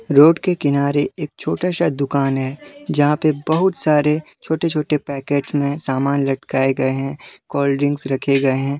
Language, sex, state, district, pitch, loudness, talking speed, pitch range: Hindi, male, Jharkhand, Deoghar, 145 Hz, -19 LUFS, 170 wpm, 140-155 Hz